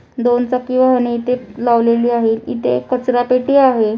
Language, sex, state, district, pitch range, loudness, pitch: Marathi, female, Maharashtra, Nagpur, 235-255 Hz, -15 LUFS, 245 Hz